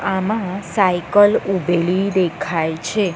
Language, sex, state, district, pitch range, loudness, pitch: Gujarati, female, Gujarat, Gandhinagar, 175-200 Hz, -18 LUFS, 190 Hz